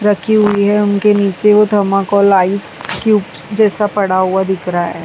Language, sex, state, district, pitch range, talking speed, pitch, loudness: Hindi, female, Bihar, West Champaran, 190-210 Hz, 180 wpm, 200 Hz, -13 LUFS